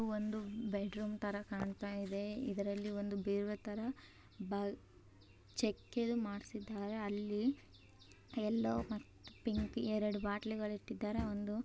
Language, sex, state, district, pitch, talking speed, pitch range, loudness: Kannada, male, Karnataka, Bellary, 210 Hz, 110 wpm, 200-220 Hz, -41 LUFS